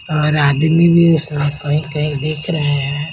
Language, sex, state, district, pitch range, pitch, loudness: Hindi, female, Haryana, Jhajjar, 145-155 Hz, 150 Hz, -15 LUFS